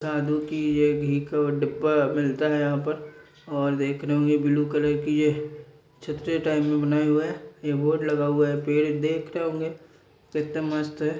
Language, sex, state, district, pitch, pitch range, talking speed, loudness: Hindi, male, Bihar, Bhagalpur, 150 Hz, 145-150 Hz, 185 wpm, -25 LUFS